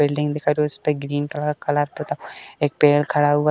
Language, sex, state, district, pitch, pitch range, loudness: Hindi, male, Uttar Pradesh, Deoria, 145 Hz, 145-150 Hz, -21 LUFS